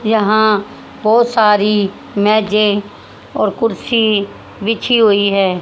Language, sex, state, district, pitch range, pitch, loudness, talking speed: Hindi, female, Haryana, Rohtak, 205-220 Hz, 215 Hz, -14 LUFS, 95 wpm